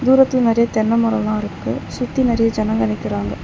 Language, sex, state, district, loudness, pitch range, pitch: Tamil, female, Tamil Nadu, Chennai, -18 LUFS, 210-245 Hz, 225 Hz